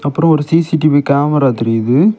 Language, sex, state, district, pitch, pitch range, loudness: Tamil, male, Tamil Nadu, Kanyakumari, 145 Hz, 140-160 Hz, -13 LUFS